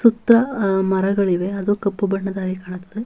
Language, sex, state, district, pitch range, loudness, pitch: Kannada, female, Karnataka, Bellary, 190-205 Hz, -19 LUFS, 195 Hz